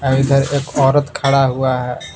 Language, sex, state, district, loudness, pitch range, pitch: Hindi, male, Jharkhand, Palamu, -15 LUFS, 130-140 Hz, 135 Hz